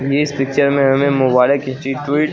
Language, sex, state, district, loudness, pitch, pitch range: Hindi, male, Bihar, Katihar, -15 LUFS, 140 Hz, 135-145 Hz